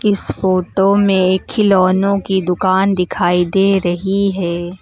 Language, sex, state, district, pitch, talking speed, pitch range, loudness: Hindi, female, Uttar Pradesh, Lucknow, 190 Hz, 125 wpm, 185-195 Hz, -15 LUFS